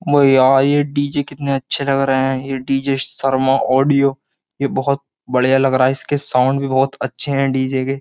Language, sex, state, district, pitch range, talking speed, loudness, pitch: Hindi, male, Uttar Pradesh, Jyotiba Phule Nagar, 130-140 Hz, 200 wpm, -16 LUFS, 135 Hz